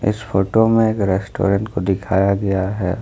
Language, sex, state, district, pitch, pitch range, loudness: Hindi, male, Jharkhand, Ranchi, 100 Hz, 95-105 Hz, -18 LUFS